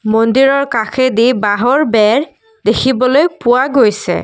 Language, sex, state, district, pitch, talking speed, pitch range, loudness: Assamese, female, Assam, Kamrup Metropolitan, 255 Hz, 100 wpm, 225-275 Hz, -12 LUFS